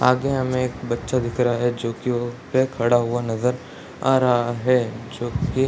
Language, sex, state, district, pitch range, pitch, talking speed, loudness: Hindi, male, Bihar, Sitamarhi, 120-130 Hz, 125 Hz, 200 wpm, -22 LUFS